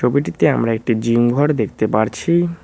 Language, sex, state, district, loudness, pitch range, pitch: Bengali, male, West Bengal, Cooch Behar, -17 LUFS, 110-150 Hz, 115 Hz